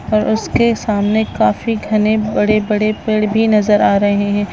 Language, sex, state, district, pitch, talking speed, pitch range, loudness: Hindi, female, Bihar, Purnia, 215 Hz, 160 wpm, 205-215 Hz, -15 LUFS